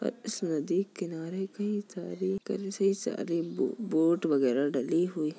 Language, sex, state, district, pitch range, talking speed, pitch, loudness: Hindi, female, Uttar Pradesh, Jalaun, 160-195 Hz, 125 wpm, 180 Hz, -31 LUFS